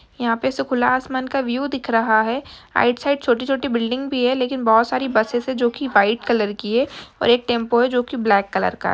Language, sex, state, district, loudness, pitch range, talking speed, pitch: Hindi, female, Bihar, Jahanabad, -20 LUFS, 230-265 Hz, 250 wpm, 245 Hz